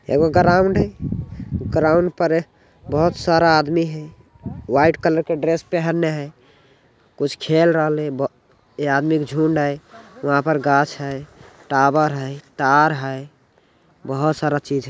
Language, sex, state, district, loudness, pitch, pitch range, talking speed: Magahi, male, Bihar, Jamui, -19 LUFS, 150 Hz, 135-160 Hz, 145 wpm